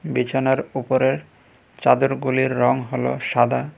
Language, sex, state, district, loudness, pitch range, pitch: Bengali, male, Tripura, West Tripura, -20 LUFS, 130-135 Hz, 130 Hz